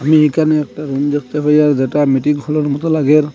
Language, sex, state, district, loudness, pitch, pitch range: Bengali, male, Assam, Hailakandi, -14 LUFS, 150 Hz, 145-150 Hz